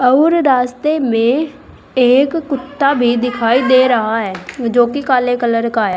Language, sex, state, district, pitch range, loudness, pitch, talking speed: Hindi, female, Uttar Pradesh, Saharanpur, 235-275 Hz, -14 LUFS, 250 Hz, 160 wpm